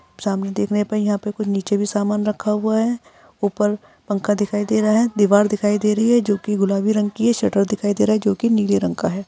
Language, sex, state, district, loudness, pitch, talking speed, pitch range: Hindi, female, Bihar, Gaya, -19 LUFS, 210 Hz, 250 wpm, 205-215 Hz